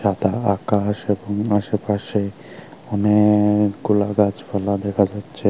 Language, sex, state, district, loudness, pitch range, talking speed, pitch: Bengali, male, Tripura, Unakoti, -20 LUFS, 100-105 Hz, 85 wpm, 105 Hz